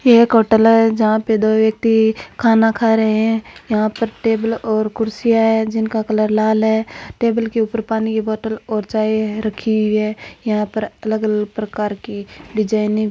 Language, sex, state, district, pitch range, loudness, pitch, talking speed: Marwari, female, Rajasthan, Churu, 215-225 Hz, -17 LUFS, 220 Hz, 185 wpm